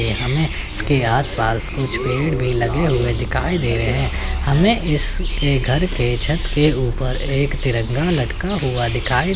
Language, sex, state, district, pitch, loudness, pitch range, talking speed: Hindi, male, Chandigarh, Chandigarh, 130 Hz, -16 LUFS, 115-150 Hz, 165 wpm